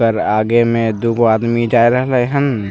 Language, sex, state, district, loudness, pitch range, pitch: Maithili, male, Bihar, Begusarai, -14 LUFS, 115-120 Hz, 115 Hz